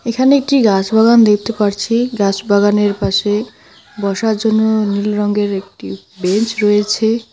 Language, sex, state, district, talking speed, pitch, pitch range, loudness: Bengali, female, West Bengal, Alipurduar, 130 wpm, 210 Hz, 200-225 Hz, -14 LUFS